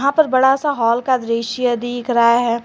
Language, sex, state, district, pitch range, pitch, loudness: Hindi, female, Jharkhand, Garhwa, 235-260 Hz, 245 Hz, -16 LUFS